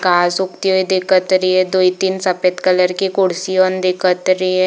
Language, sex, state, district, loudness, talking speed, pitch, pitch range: Hindi, female, Chhattisgarh, Bilaspur, -15 LUFS, 165 wpm, 185 Hz, 185-190 Hz